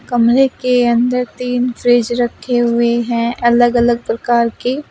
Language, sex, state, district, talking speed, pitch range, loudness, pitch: Hindi, female, Uttar Pradesh, Saharanpur, 145 wpm, 235-250 Hz, -14 LUFS, 240 Hz